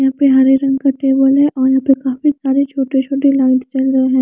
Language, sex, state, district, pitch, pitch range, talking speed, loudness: Hindi, female, Chandigarh, Chandigarh, 270 Hz, 265-275 Hz, 240 wpm, -13 LUFS